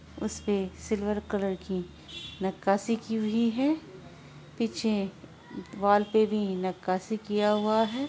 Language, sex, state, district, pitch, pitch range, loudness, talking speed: Hindi, female, Bihar, Araria, 210 Hz, 195-220 Hz, -29 LUFS, 120 wpm